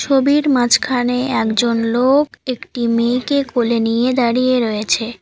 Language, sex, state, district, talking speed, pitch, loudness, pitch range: Bengali, female, West Bengal, Alipurduar, 115 wpm, 245 Hz, -16 LUFS, 230-255 Hz